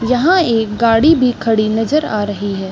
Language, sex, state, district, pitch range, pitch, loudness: Hindi, female, Chhattisgarh, Raigarh, 215-255 Hz, 225 Hz, -14 LUFS